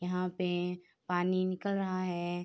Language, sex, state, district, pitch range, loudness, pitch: Hindi, female, Bihar, Saharsa, 175-185 Hz, -34 LUFS, 180 Hz